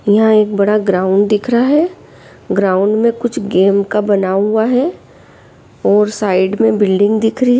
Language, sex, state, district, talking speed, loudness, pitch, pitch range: Hindi, female, Chhattisgarh, Kabirdham, 165 wpm, -13 LUFS, 210 Hz, 200-225 Hz